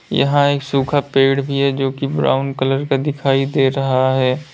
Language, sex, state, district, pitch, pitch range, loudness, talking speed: Hindi, male, Uttar Pradesh, Lalitpur, 135 Hz, 135-140 Hz, -17 LUFS, 185 wpm